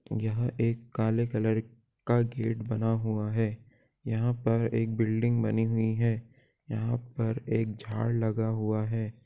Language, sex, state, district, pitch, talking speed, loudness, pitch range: Hindi, male, Jharkhand, Jamtara, 115 Hz, 150 wpm, -30 LUFS, 110-120 Hz